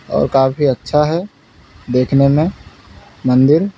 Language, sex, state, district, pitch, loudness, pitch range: Hindi, male, Uttar Pradesh, Lalitpur, 135 Hz, -15 LUFS, 125-150 Hz